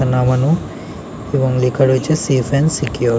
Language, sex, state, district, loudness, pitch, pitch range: Bengali, male, West Bengal, North 24 Parganas, -16 LUFS, 130 Hz, 120-140 Hz